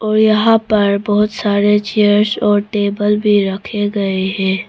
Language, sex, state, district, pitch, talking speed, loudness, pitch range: Hindi, female, Arunachal Pradesh, Papum Pare, 205 Hz, 155 wpm, -14 LUFS, 200-210 Hz